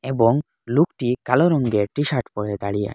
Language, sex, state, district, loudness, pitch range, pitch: Bengali, male, Assam, Hailakandi, -21 LUFS, 105-145 Hz, 125 Hz